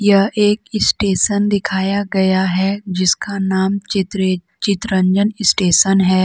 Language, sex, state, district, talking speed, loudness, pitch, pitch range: Hindi, female, Jharkhand, Deoghar, 115 wpm, -16 LUFS, 195 Hz, 190-205 Hz